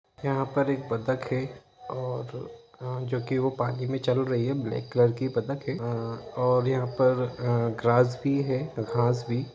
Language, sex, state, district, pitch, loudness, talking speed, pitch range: Hindi, male, Jharkhand, Jamtara, 125 Hz, -27 LUFS, 180 wpm, 120-130 Hz